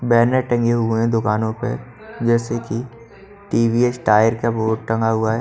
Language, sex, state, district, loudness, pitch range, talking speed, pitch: Hindi, male, Haryana, Charkhi Dadri, -19 LUFS, 110-120 Hz, 165 wpm, 115 Hz